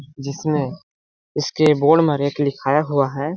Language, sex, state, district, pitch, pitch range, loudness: Hindi, male, Chhattisgarh, Balrampur, 145 Hz, 140-150 Hz, -19 LUFS